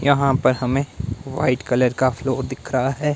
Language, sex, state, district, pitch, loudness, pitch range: Hindi, male, Himachal Pradesh, Shimla, 130 Hz, -21 LUFS, 125-140 Hz